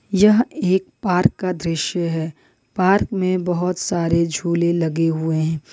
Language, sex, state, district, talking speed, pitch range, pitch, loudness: Hindi, female, Jharkhand, Ranchi, 145 wpm, 165-185 Hz, 175 Hz, -19 LUFS